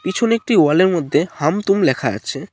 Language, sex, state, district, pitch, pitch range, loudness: Bengali, male, West Bengal, Cooch Behar, 180 Hz, 150-195 Hz, -17 LUFS